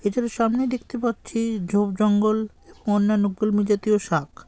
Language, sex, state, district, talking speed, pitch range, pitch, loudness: Bengali, male, West Bengal, Malda, 145 wpm, 205-230 Hz, 210 Hz, -23 LUFS